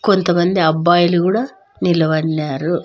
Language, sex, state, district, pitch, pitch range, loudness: Telugu, female, Andhra Pradesh, Sri Satya Sai, 175 Hz, 160-185 Hz, -16 LUFS